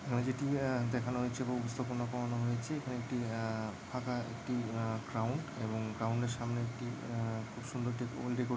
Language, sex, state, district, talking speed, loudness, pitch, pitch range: Bengali, male, West Bengal, Dakshin Dinajpur, 175 wpm, -37 LUFS, 120 Hz, 115-125 Hz